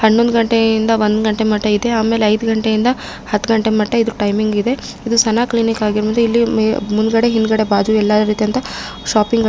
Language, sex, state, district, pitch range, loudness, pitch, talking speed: Kannada, female, Karnataka, Gulbarga, 215-230 Hz, -15 LUFS, 220 Hz, 175 wpm